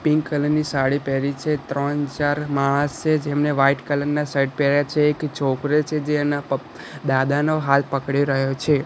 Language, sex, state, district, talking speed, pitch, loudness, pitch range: Gujarati, male, Gujarat, Gandhinagar, 190 wpm, 145 Hz, -21 LUFS, 140-150 Hz